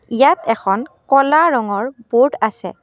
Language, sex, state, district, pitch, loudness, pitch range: Assamese, female, Assam, Kamrup Metropolitan, 245 Hz, -16 LUFS, 220-275 Hz